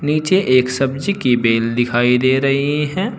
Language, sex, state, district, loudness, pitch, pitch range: Hindi, male, Uttar Pradesh, Shamli, -16 LUFS, 135 Hz, 125-150 Hz